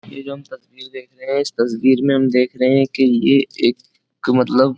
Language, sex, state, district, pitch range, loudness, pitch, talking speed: Hindi, male, Uttar Pradesh, Jyotiba Phule Nagar, 125-135 Hz, -16 LUFS, 130 Hz, 240 wpm